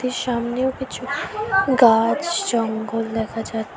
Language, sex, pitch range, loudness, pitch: Bengali, female, 225-265 Hz, -21 LUFS, 240 Hz